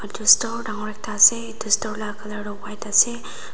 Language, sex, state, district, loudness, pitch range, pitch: Nagamese, female, Nagaland, Dimapur, -19 LUFS, 210-230 Hz, 215 Hz